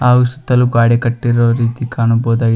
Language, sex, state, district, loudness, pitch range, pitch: Kannada, male, Karnataka, Koppal, -14 LUFS, 115-125 Hz, 120 Hz